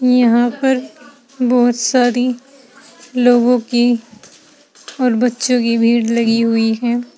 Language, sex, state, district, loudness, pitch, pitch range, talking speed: Hindi, female, Uttar Pradesh, Saharanpur, -15 LUFS, 245 Hz, 235-250 Hz, 110 wpm